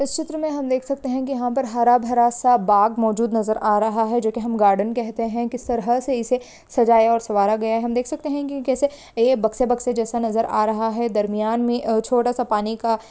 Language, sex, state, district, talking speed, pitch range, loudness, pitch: Hindi, female, Maharashtra, Sindhudurg, 245 wpm, 225-250 Hz, -21 LUFS, 235 Hz